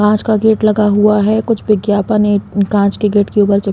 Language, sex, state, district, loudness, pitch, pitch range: Hindi, female, Chhattisgarh, Balrampur, -13 LUFS, 210 Hz, 205-215 Hz